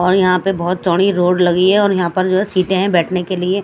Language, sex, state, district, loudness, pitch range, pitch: Hindi, female, Himachal Pradesh, Shimla, -15 LUFS, 180-190 Hz, 185 Hz